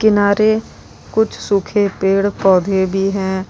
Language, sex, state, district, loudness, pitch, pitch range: Hindi, female, Uttar Pradesh, Lalitpur, -16 LUFS, 200 Hz, 190-205 Hz